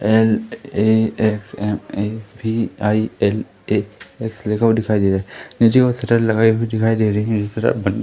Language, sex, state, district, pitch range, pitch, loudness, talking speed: Hindi, male, Madhya Pradesh, Katni, 105-115 Hz, 110 Hz, -18 LUFS, 150 wpm